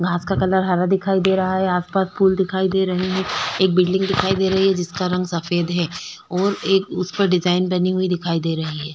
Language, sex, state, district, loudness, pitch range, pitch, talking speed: Hindi, female, Goa, North and South Goa, -19 LUFS, 180-190 Hz, 185 Hz, 230 wpm